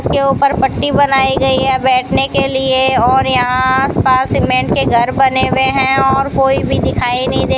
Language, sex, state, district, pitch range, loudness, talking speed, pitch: Hindi, female, Rajasthan, Bikaner, 260-270 Hz, -12 LUFS, 215 wpm, 265 Hz